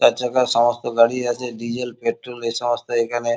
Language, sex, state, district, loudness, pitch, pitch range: Bengali, male, West Bengal, Kolkata, -21 LUFS, 120 Hz, 120-125 Hz